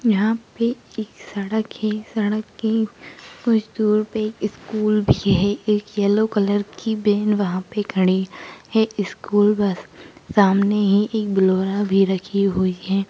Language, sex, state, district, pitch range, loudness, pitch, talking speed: Hindi, female, Bihar, Begusarai, 195-215 Hz, -20 LUFS, 205 Hz, 145 wpm